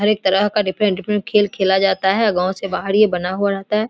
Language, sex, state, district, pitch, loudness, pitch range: Hindi, female, Bihar, Samastipur, 195 Hz, -17 LUFS, 190-210 Hz